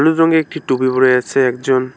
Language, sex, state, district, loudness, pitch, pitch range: Bengali, male, West Bengal, Alipurduar, -15 LUFS, 130 Hz, 130-160 Hz